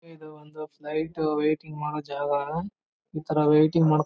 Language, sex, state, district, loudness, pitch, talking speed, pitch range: Kannada, male, Karnataka, Chamarajanagar, -26 LUFS, 155 Hz, 135 wpm, 150-155 Hz